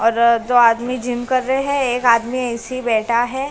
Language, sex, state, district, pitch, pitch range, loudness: Hindi, female, Maharashtra, Mumbai Suburban, 245 Hz, 235-255 Hz, -17 LUFS